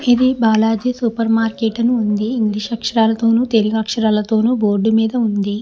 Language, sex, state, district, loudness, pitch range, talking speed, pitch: Telugu, male, Telangana, Hyderabad, -16 LUFS, 220-235 Hz, 140 wpm, 225 Hz